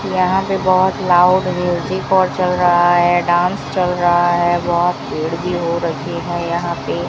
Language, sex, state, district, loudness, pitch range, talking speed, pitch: Hindi, female, Rajasthan, Bikaner, -16 LUFS, 175-185 Hz, 185 wpm, 175 Hz